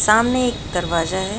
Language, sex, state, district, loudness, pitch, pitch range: Hindi, female, Uttar Pradesh, Jalaun, -19 LUFS, 205 Hz, 175-230 Hz